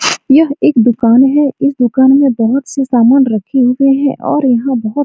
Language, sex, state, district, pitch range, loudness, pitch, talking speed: Hindi, female, Bihar, Supaul, 240-275 Hz, -11 LUFS, 265 Hz, 200 wpm